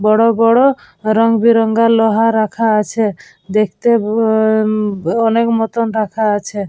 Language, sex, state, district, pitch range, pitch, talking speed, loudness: Bengali, female, West Bengal, Purulia, 215-230 Hz, 220 Hz, 80 wpm, -14 LUFS